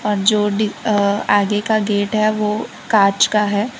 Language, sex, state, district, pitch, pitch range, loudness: Hindi, female, Gujarat, Valsad, 210 Hz, 205-215 Hz, -17 LUFS